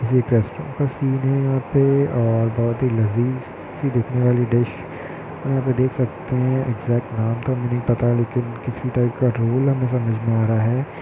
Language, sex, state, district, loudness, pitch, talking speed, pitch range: Hindi, male, Bihar, Muzaffarpur, -20 LUFS, 125 Hz, 190 wpm, 115-130 Hz